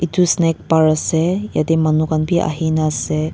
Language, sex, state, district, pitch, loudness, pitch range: Nagamese, female, Nagaland, Dimapur, 160 Hz, -17 LUFS, 155-170 Hz